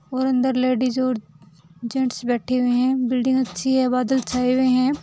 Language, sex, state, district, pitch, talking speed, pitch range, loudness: Hindi, female, Rajasthan, Churu, 255 Hz, 180 wpm, 245-260 Hz, -21 LUFS